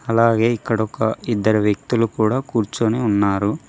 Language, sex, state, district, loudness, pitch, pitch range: Telugu, male, Telangana, Mahabubabad, -19 LUFS, 115 Hz, 105-115 Hz